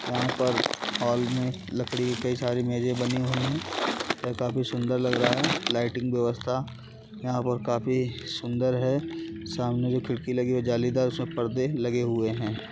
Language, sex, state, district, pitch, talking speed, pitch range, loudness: Hindi, male, Uttar Pradesh, Gorakhpur, 125 Hz, 175 wpm, 120-125 Hz, -27 LUFS